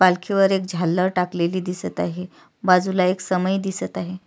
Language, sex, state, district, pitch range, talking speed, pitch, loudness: Marathi, female, Maharashtra, Sindhudurg, 180-190 Hz, 170 wpm, 185 Hz, -21 LUFS